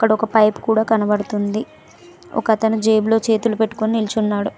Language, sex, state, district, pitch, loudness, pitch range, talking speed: Telugu, female, Telangana, Mahabubabad, 220 Hz, -18 LUFS, 215-225 Hz, 130 wpm